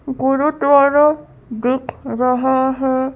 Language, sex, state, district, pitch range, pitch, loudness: Hindi, female, Madhya Pradesh, Bhopal, 255-280 Hz, 265 Hz, -16 LUFS